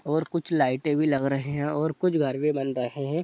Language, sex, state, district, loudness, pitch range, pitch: Hindi, male, Bihar, Jahanabad, -26 LUFS, 140-155 Hz, 150 Hz